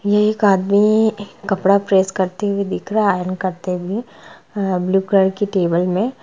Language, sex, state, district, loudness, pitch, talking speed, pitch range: Hindi, female, Jharkhand, Jamtara, -18 LUFS, 195 Hz, 185 wpm, 185-205 Hz